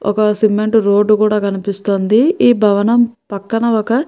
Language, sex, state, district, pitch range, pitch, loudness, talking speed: Telugu, female, Andhra Pradesh, Chittoor, 205-230 Hz, 215 Hz, -14 LUFS, 130 wpm